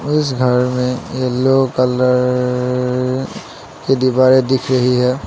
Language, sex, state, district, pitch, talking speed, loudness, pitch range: Hindi, male, Assam, Sonitpur, 125 Hz, 115 wpm, -15 LUFS, 125-130 Hz